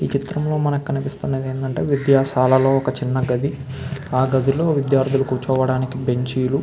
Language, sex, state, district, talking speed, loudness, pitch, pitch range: Telugu, male, Andhra Pradesh, Krishna, 145 wpm, -20 LUFS, 135 Hz, 130-140 Hz